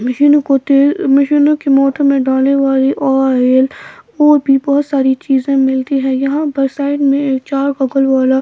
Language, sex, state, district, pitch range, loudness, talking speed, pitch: Hindi, female, Bihar, Patna, 265-285 Hz, -12 LUFS, 170 wpm, 275 Hz